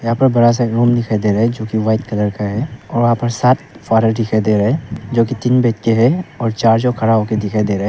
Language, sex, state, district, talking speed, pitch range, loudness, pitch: Hindi, male, Arunachal Pradesh, Papum Pare, 275 wpm, 110-120 Hz, -15 LUFS, 115 Hz